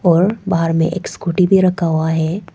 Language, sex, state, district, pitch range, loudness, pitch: Hindi, female, Arunachal Pradesh, Papum Pare, 165-185 Hz, -16 LUFS, 175 Hz